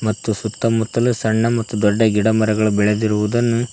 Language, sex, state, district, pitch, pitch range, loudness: Kannada, male, Karnataka, Koppal, 110 Hz, 105-115 Hz, -18 LUFS